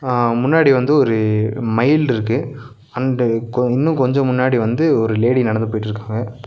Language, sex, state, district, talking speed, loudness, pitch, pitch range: Tamil, male, Tamil Nadu, Nilgiris, 140 wpm, -17 LUFS, 120 Hz, 115-130 Hz